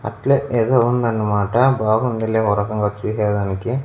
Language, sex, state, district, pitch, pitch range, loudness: Telugu, male, Andhra Pradesh, Annamaya, 110 Hz, 105-120 Hz, -18 LUFS